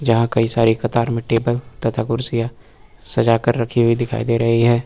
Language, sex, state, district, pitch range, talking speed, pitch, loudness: Hindi, male, Uttar Pradesh, Lucknow, 115-120 Hz, 185 wpm, 115 Hz, -18 LUFS